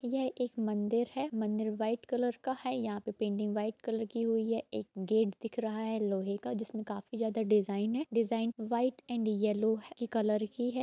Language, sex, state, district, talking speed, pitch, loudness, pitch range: Hindi, female, Jharkhand, Jamtara, 190 wpm, 225 Hz, -34 LUFS, 215-235 Hz